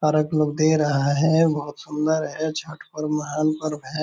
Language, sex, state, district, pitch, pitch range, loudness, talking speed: Hindi, male, Bihar, Purnia, 155 Hz, 150-155 Hz, -22 LUFS, 195 wpm